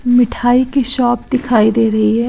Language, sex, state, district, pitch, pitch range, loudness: Hindi, female, Uttar Pradesh, Hamirpur, 245 Hz, 225-250 Hz, -13 LUFS